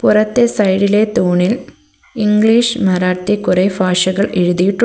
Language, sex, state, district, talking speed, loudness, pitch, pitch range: Malayalam, female, Kerala, Kollam, 100 wpm, -14 LUFS, 200 Hz, 185-220 Hz